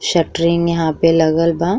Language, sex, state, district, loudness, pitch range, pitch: Bhojpuri, female, Uttar Pradesh, Ghazipur, -15 LUFS, 165-170 Hz, 170 Hz